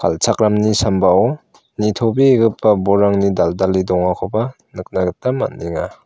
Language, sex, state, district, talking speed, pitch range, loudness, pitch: Garo, male, Meghalaya, South Garo Hills, 90 wpm, 95-115 Hz, -16 LUFS, 105 Hz